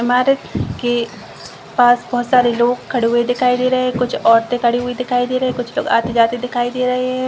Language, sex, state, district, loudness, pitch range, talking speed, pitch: Hindi, female, Chhattisgarh, Balrampur, -16 LUFS, 240-250 Hz, 240 wpm, 245 Hz